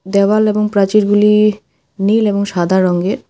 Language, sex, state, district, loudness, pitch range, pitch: Bengali, female, West Bengal, Alipurduar, -13 LUFS, 195-210 Hz, 200 Hz